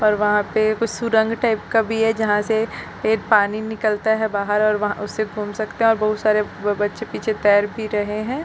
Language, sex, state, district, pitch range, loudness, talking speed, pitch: Hindi, female, Chhattisgarh, Bilaspur, 210-220 Hz, -20 LUFS, 235 wpm, 215 Hz